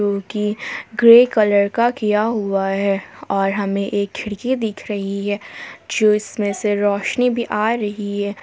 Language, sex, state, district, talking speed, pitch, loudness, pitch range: Hindi, female, Jharkhand, Palamu, 150 wpm, 210 Hz, -18 LUFS, 200-220 Hz